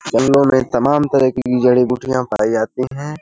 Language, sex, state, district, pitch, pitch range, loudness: Hindi, male, Uttar Pradesh, Hamirpur, 130 Hz, 125-140 Hz, -15 LUFS